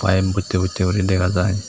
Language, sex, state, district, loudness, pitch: Chakma, male, Tripura, Dhalai, -19 LUFS, 95 Hz